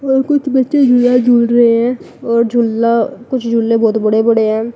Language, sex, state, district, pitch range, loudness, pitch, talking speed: Hindi, female, Uttar Pradesh, Lalitpur, 230-255 Hz, -12 LUFS, 235 Hz, 190 wpm